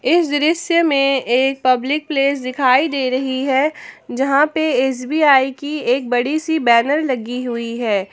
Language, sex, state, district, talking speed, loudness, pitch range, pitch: Hindi, female, Jharkhand, Ranchi, 155 wpm, -17 LUFS, 255-295 Hz, 270 Hz